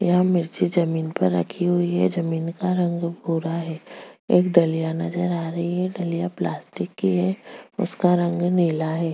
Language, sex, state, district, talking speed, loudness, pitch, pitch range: Hindi, female, Chhattisgarh, Jashpur, 170 wpm, -23 LUFS, 170 Hz, 160-175 Hz